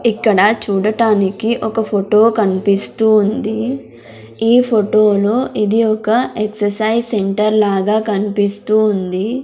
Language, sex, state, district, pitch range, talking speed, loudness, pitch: Telugu, female, Andhra Pradesh, Sri Satya Sai, 205-225 Hz, 95 wpm, -15 LUFS, 215 Hz